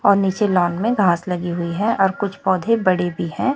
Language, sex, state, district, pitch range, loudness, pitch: Hindi, female, Chhattisgarh, Raipur, 175-200 Hz, -19 LUFS, 190 Hz